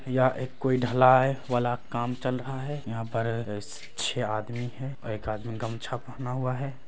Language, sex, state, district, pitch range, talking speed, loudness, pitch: Hindi, male, Bihar, Bhagalpur, 115-130 Hz, 190 wpm, -29 LUFS, 125 Hz